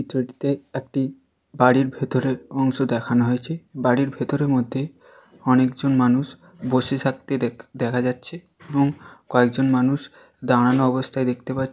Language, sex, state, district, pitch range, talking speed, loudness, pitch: Bengali, male, West Bengal, Jalpaiguri, 125-135 Hz, 135 wpm, -22 LUFS, 130 Hz